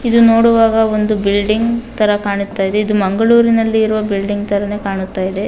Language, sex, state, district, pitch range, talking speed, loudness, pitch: Kannada, female, Karnataka, Dakshina Kannada, 200-225 Hz, 130 wpm, -14 LUFS, 210 Hz